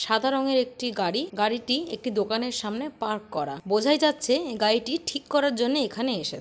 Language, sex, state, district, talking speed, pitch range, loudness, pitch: Bengali, female, West Bengal, Purulia, 170 wpm, 215-275 Hz, -26 LUFS, 245 Hz